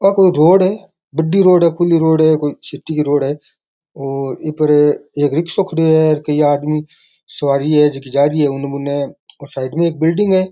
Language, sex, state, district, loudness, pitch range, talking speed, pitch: Rajasthani, male, Rajasthan, Nagaur, -15 LUFS, 145-170 Hz, 200 wpm, 150 Hz